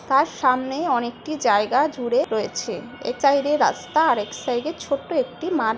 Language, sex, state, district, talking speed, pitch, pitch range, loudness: Bengali, female, West Bengal, Purulia, 195 wpm, 270 Hz, 240-305 Hz, -22 LUFS